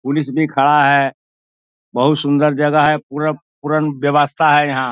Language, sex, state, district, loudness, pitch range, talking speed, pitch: Hindi, male, Bihar, East Champaran, -15 LUFS, 135-150 Hz, 145 wpm, 145 Hz